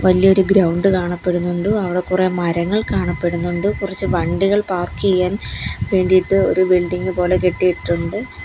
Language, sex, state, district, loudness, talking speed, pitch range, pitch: Malayalam, female, Kerala, Kollam, -17 LUFS, 115 wpm, 180-195 Hz, 185 Hz